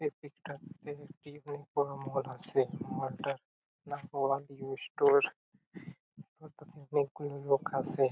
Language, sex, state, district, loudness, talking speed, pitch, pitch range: Bengali, male, West Bengal, Purulia, -34 LUFS, 135 wpm, 145 Hz, 140-150 Hz